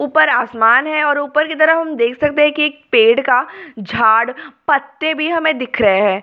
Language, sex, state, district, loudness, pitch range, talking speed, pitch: Hindi, female, Delhi, New Delhi, -14 LUFS, 245-310 Hz, 220 wpm, 295 Hz